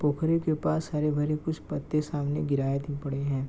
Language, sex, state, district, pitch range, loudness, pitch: Hindi, male, Bihar, Gopalganj, 140-155 Hz, -29 LUFS, 150 Hz